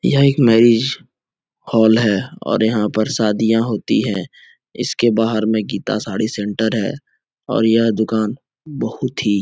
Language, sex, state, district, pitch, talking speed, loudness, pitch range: Hindi, male, Uttar Pradesh, Etah, 110 Hz, 155 wpm, -17 LUFS, 110-115 Hz